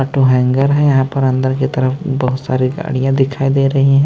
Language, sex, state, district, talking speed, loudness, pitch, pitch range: Hindi, male, Maharashtra, Mumbai Suburban, 220 wpm, -14 LUFS, 135 Hz, 130-135 Hz